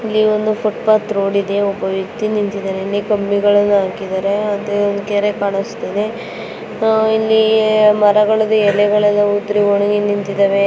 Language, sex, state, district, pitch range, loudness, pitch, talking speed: Kannada, female, Karnataka, Belgaum, 200-215 Hz, -15 LUFS, 205 Hz, 120 wpm